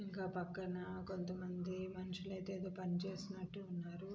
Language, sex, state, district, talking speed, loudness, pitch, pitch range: Telugu, female, Andhra Pradesh, Anantapur, 115 wpm, -45 LUFS, 185 Hz, 180-190 Hz